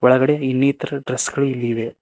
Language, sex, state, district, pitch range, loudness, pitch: Kannada, male, Karnataka, Koppal, 125-140 Hz, -19 LUFS, 130 Hz